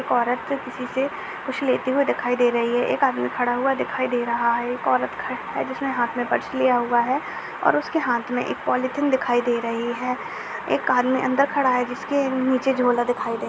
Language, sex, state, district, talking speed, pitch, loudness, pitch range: Hindi, female, Bihar, Jahanabad, 225 wpm, 250 Hz, -23 LUFS, 240-265 Hz